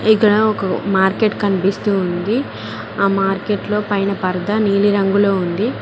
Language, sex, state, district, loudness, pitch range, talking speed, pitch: Telugu, female, Telangana, Mahabubabad, -17 LUFS, 195-210 Hz, 135 wpm, 200 Hz